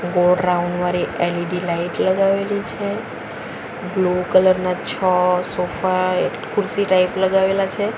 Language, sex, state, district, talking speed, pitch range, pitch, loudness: Gujarati, female, Gujarat, Valsad, 130 wpm, 180-195 Hz, 185 Hz, -19 LUFS